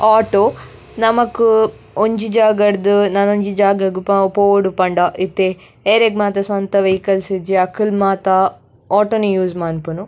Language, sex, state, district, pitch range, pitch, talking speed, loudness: Tulu, female, Karnataka, Dakshina Kannada, 190-210 Hz, 200 Hz, 120 wpm, -15 LUFS